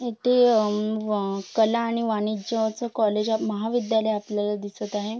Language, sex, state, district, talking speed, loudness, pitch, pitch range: Marathi, female, Maharashtra, Sindhudurg, 140 wpm, -24 LUFS, 220 Hz, 210-230 Hz